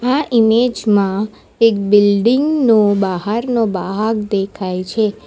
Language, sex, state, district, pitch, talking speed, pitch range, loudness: Gujarati, female, Gujarat, Valsad, 215 Hz, 115 wpm, 200-230 Hz, -15 LUFS